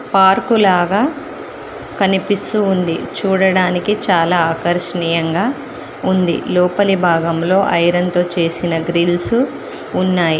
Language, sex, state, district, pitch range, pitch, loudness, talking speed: Telugu, female, Telangana, Mahabubabad, 175-200 Hz, 180 Hz, -15 LUFS, 85 wpm